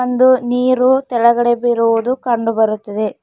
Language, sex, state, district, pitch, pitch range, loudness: Kannada, female, Karnataka, Bidar, 240 Hz, 230-255 Hz, -14 LUFS